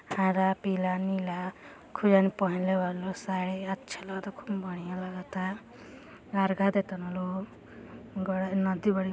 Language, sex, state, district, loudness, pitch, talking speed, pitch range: Hindi, female, Uttar Pradesh, Gorakhpur, -30 LUFS, 190 Hz, 150 wpm, 185-195 Hz